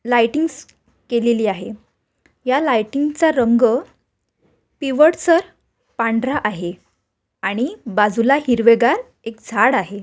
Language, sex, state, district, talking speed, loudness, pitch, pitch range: Marathi, female, Maharashtra, Aurangabad, 90 wpm, -17 LUFS, 235 Hz, 215-285 Hz